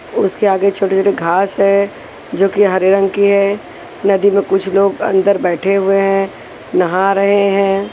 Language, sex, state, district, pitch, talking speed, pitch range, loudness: Hindi, female, Maharashtra, Washim, 195 Hz, 165 wpm, 195-200 Hz, -13 LUFS